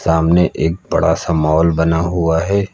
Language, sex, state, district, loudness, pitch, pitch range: Hindi, male, Uttar Pradesh, Lucknow, -15 LUFS, 80 Hz, 80-90 Hz